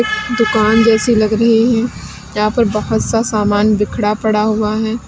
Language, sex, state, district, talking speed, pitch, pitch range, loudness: Hindi, female, Uttar Pradesh, Lalitpur, 165 wpm, 220 Hz, 215-230 Hz, -14 LUFS